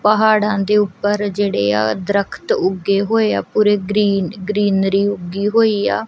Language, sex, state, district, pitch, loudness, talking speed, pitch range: Punjabi, female, Punjab, Kapurthala, 205 Hz, -17 LUFS, 130 wpm, 195-210 Hz